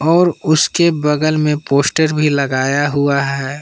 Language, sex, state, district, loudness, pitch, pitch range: Hindi, male, Jharkhand, Palamu, -15 LUFS, 150 Hz, 140-155 Hz